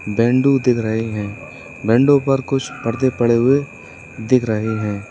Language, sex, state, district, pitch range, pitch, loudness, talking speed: Hindi, male, Uttar Pradesh, Lalitpur, 110-135 Hz, 120 Hz, -17 LUFS, 155 wpm